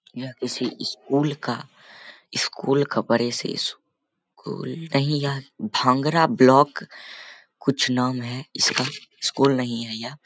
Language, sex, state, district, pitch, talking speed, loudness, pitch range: Hindi, male, Bihar, Begusarai, 130 Hz, 125 wpm, -23 LUFS, 125-140 Hz